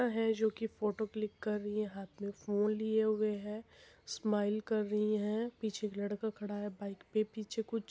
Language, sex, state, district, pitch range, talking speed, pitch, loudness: Hindi, female, Uttar Pradesh, Muzaffarnagar, 205-220 Hz, 205 wpm, 215 Hz, -37 LUFS